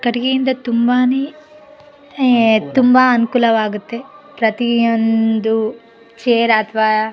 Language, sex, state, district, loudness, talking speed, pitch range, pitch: Kannada, female, Karnataka, Bellary, -15 LUFS, 85 wpm, 225-260 Hz, 235 Hz